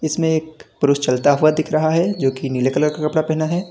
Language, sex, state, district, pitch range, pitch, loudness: Hindi, male, Uttar Pradesh, Lalitpur, 140-160 Hz, 155 Hz, -18 LUFS